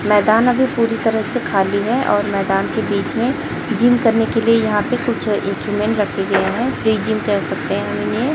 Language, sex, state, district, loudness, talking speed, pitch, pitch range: Hindi, female, Chhattisgarh, Raipur, -17 LUFS, 200 wpm, 220 Hz, 205-230 Hz